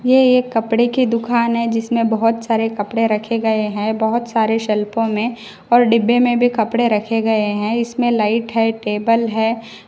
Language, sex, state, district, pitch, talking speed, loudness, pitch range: Hindi, female, Karnataka, Koppal, 225 Hz, 180 wpm, -17 LUFS, 220-235 Hz